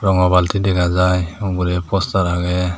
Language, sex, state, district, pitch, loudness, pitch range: Chakma, male, Tripura, Dhalai, 90 Hz, -17 LUFS, 90-95 Hz